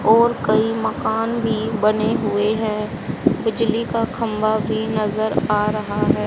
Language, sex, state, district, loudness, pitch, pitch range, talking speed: Hindi, female, Haryana, Charkhi Dadri, -20 LUFS, 220 Hz, 215-225 Hz, 145 wpm